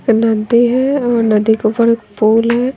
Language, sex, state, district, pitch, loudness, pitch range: Hindi, female, Bihar, West Champaran, 230 Hz, -13 LUFS, 220-240 Hz